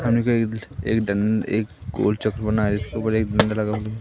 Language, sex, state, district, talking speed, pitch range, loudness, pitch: Hindi, male, Madhya Pradesh, Katni, 150 wpm, 105-110 Hz, -23 LUFS, 110 Hz